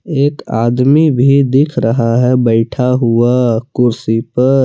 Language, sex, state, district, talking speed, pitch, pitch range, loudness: Hindi, male, Jharkhand, Palamu, 130 wpm, 125 Hz, 115-135 Hz, -12 LUFS